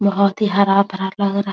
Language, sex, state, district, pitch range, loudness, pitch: Hindi, female, Bihar, Araria, 195-200 Hz, -17 LUFS, 200 Hz